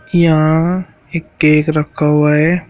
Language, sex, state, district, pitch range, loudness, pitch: Hindi, male, Uttar Pradesh, Shamli, 150-170 Hz, -13 LUFS, 155 Hz